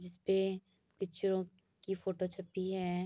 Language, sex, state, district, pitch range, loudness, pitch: Hindi, female, Bihar, Saharsa, 180-190 Hz, -37 LUFS, 190 Hz